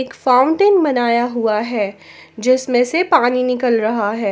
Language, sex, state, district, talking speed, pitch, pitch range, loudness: Hindi, female, Jharkhand, Ranchi, 140 wpm, 245 Hz, 225-260 Hz, -16 LUFS